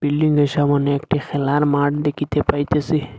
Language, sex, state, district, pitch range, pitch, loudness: Bengali, male, Assam, Hailakandi, 145-150 Hz, 145 Hz, -19 LUFS